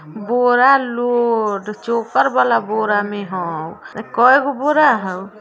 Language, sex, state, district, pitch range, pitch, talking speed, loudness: Bajjika, female, Bihar, Vaishali, 205-245 Hz, 220 Hz, 110 wpm, -16 LUFS